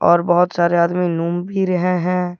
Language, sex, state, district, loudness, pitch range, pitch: Hindi, male, Jharkhand, Deoghar, -17 LUFS, 170-180 Hz, 175 Hz